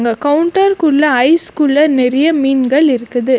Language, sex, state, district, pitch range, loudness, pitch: Tamil, female, Karnataka, Bangalore, 255-310 Hz, -12 LUFS, 290 Hz